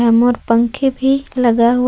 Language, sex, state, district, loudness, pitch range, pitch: Hindi, female, Jharkhand, Palamu, -15 LUFS, 235-265 Hz, 245 Hz